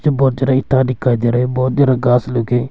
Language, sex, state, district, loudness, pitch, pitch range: Hindi, male, Arunachal Pradesh, Longding, -15 LUFS, 130 Hz, 125-135 Hz